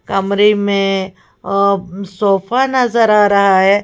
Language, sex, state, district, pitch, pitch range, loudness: Hindi, female, Uttar Pradesh, Lalitpur, 200 Hz, 195-210 Hz, -13 LUFS